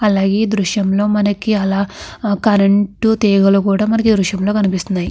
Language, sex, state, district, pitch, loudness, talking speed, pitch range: Telugu, female, Andhra Pradesh, Krishna, 200 Hz, -15 LUFS, 165 wpm, 195-210 Hz